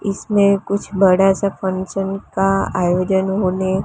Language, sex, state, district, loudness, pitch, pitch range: Hindi, female, Gujarat, Gandhinagar, -17 LUFS, 195 Hz, 190-195 Hz